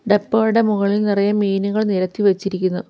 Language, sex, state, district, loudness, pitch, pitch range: Malayalam, female, Kerala, Kollam, -18 LUFS, 205 Hz, 195-210 Hz